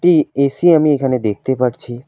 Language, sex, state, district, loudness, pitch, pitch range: Bengali, male, West Bengal, Alipurduar, -15 LUFS, 135 Hz, 125-155 Hz